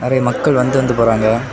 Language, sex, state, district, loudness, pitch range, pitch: Tamil, male, Tamil Nadu, Kanyakumari, -14 LUFS, 115-130 Hz, 125 Hz